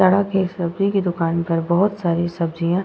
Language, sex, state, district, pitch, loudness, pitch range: Hindi, female, Uttar Pradesh, Budaun, 175 Hz, -20 LUFS, 170-190 Hz